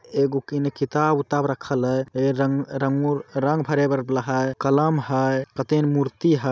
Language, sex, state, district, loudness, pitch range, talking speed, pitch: Magahi, male, Bihar, Jamui, -22 LUFS, 135-145 Hz, 155 wpm, 140 Hz